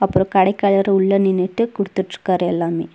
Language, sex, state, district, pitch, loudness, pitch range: Tamil, female, Tamil Nadu, Nilgiris, 190 Hz, -18 LUFS, 185-195 Hz